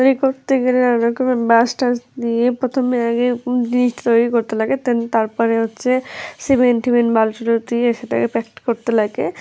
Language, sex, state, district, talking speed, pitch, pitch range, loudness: Bengali, female, West Bengal, Jalpaiguri, 165 wpm, 240 Hz, 230-250 Hz, -17 LUFS